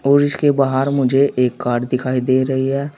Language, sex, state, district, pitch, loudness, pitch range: Hindi, male, Uttar Pradesh, Saharanpur, 135 Hz, -17 LUFS, 130-140 Hz